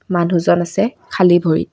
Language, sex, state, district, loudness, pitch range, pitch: Assamese, female, Assam, Kamrup Metropolitan, -15 LUFS, 170-185 Hz, 175 Hz